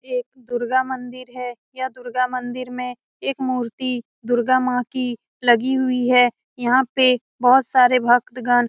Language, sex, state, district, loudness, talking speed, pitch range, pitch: Hindi, female, Bihar, Saran, -20 LUFS, 160 wpm, 245-255 Hz, 250 Hz